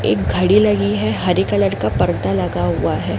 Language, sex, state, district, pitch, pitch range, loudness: Hindi, female, Uttar Pradesh, Jalaun, 95 Hz, 90-105 Hz, -17 LUFS